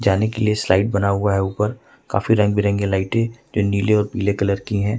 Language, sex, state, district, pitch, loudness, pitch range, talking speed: Hindi, male, Jharkhand, Ranchi, 105 Hz, -19 LUFS, 100-110 Hz, 230 wpm